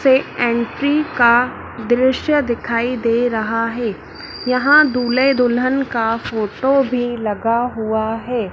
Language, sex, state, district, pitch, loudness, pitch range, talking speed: Hindi, female, Madhya Pradesh, Dhar, 240 Hz, -17 LUFS, 230-260 Hz, 120 wpm